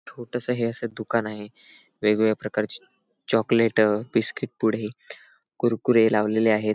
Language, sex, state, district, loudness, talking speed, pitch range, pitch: Marathi, male, Maharashtra, Sindhudurg, -24 LUFS, 115 wpm, 105-115 Hz, 110 Hz